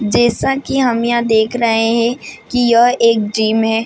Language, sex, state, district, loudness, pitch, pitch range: Hindi, female, Bihar, Madhepura, -14 LUFS, 235 Hz, 225-240 Hz